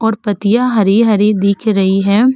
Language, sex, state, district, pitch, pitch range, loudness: Hindi, female, Uttar Pradesh, Hamirpur, 210 Hz, 200-225 Hz, -12 LUFS